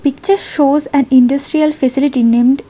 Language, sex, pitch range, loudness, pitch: English, female, 260-300 Hz, -13 LUFS, 280 Hz